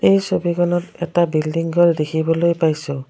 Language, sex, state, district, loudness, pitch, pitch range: Assamese, female, Assam, Kamrup Metropolitan, -18 LUFS, 165 Hz, 150-175 Hz